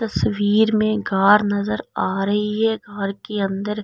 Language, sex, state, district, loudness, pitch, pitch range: Hindi, female, Delhi, New Delhi, -20 LUFS, 205 Hz, 200-215 Hz